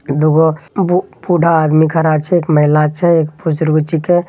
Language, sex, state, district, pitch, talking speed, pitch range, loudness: Angika, male, Bihar, Begusarai, 160 Hz, 165 wpm, 155-170 Hz, -13 LUFS